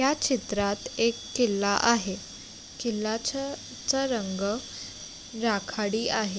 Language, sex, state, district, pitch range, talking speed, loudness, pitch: Marathi, female, Maharashtra, Sindhudurg, 205-250 Hz, 85 wpm, -28 LUFS, 225 Hz